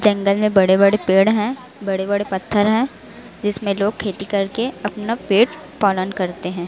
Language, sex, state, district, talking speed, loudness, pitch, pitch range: Hindi, female, Chhattisgarh, Raipur, 170 wpm, -19 LUFS, 205 Hz, 195-215 Hz